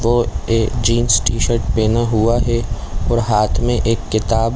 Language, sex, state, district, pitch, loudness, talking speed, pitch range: Hindi, male, Chhattisgarh, Korba, 115 Hz, -17 LUFS, 160 wpm, 110-115 Hz